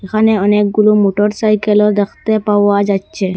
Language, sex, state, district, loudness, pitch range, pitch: Bengali, female, Assam, Hailakandi, -13 LUFS, 200-215 Hz, 210 Hz